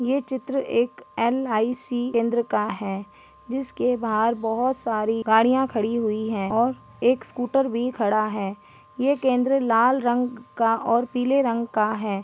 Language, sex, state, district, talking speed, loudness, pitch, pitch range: Hindi, female, Uttarakhand, Uttarkashi, 150 wpm, -23 LUFS, 235 Hz, 215-255 Hz